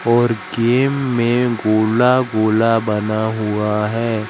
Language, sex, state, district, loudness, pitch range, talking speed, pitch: Hindi, female, Madhya Pradesh, Katni, -17 LUFS, 110-120 Hz, 110 wpm, 115 Hz